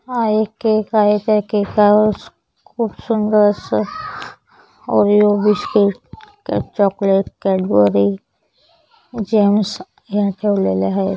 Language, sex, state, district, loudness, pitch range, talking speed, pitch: Marathi, female, Maharashtra, Chandrapur, -16 LUFS, 195-215 Hz, 90 wpm, 210 Hz